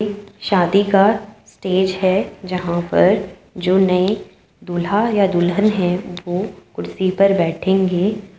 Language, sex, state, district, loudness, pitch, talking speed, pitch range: Hindi, female, Uttar Pradesh, Jyotiba Phule Nagar, -18 LUFS, 190 Hz, 115 wpm, 180-200 Hz